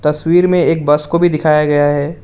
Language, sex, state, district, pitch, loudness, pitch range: Hindi, male, Assam, Kamrup Metropolitan, 155 Hz, -13 LUFS, 150-170 Hz